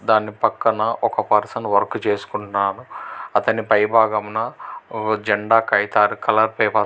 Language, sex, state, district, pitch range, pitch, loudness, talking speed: Telugu, male, Telangana, Hyderabad, 105-110 Hz, 110 Hz, -19 LUFS, 115 wpm